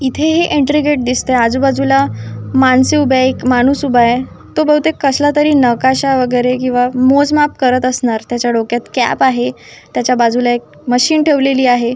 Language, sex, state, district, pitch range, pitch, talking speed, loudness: Marathi, female, Maharashtra, Nagpur, 245-285 Hz, 255 Hz, 155 wpm, -13 LUFS